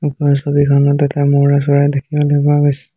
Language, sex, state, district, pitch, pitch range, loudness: Assamese, male, Assam, Hailakandi, 145 Hz, 140-145 Hz, -13 LUFS